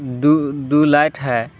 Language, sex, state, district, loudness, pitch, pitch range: Hindi, male, Jharkhand, Palamu, -16 LUFS, 145 Hz, 135-150 Hz